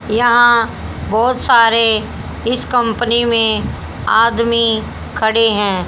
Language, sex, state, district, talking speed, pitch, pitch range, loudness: Hindi, female, Haryana, Jhajjar, 90 wpm, 230 Hz, 220-235 Hz, -14 LUFS